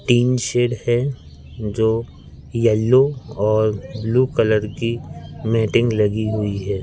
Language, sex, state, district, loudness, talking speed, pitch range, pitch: Hindi, male, Madhya Pradesh, Katni, -19 LUFS, 115 wpm, 105-120 Hz, 110 Hz